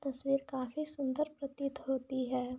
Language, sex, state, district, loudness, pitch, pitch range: Hindi, female, Jharkhand, Jamtara, -37 LUFS, 275 Hz, 260-280 Hz